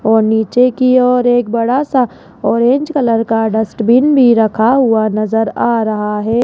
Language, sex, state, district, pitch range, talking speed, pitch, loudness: Hindi, female, Rajasthan, Jaipur, 220-250 Hz, 170 wpm, 230 Hz, -12 LUFS